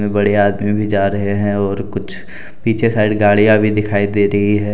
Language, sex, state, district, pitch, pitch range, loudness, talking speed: Hindi, male, Jharkhand, Deoghar, 105 Hz, 100-105 Hz, -15 LUFS, 190 wpm